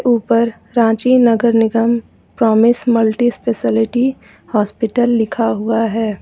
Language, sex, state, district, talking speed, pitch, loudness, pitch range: Hindi, female, Jharkhand, Ranchi, 105 wpm, 230 Hz, -15 LUFS, 225-240 Hz